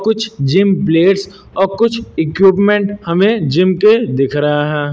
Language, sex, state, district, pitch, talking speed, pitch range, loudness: Hindi, male, Uttar Pradesh, Lucknow, 195 Hz, 145 wpm, 155-205 Hz, -13 LUFS